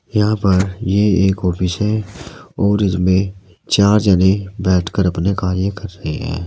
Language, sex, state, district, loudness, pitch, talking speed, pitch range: Hindi, male, Uttar Pradesh, Saharanpur, -16 LUFS, 95 Hz, 150 wpm, 90-100 Hz